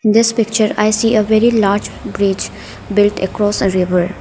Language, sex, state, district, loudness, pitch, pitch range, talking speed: English, female, Arunachal Pradesh, Lower Dibang Valley, -15 LUFS, 210 Hz, 200-220 Hz, 185 wpm